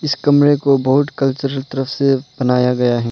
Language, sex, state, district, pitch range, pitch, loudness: Hindi, male, Arunachal Pradesh, Lower Dibang Valley, 125-140 Hz, 135 Hz, -16 LUFS